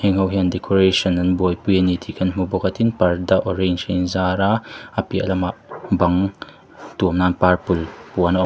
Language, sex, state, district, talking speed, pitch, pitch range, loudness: Mizo, male, Mizoram, Aizawl, 200 wpm, 95 Hz, 90-95 Hz, -19 LUFS